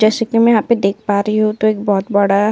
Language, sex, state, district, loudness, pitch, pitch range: Hindi, female, Uttar Pradesh, Jyotiba Phule Nagar, -15 LUFS, 215 Hz, 200-220 Hz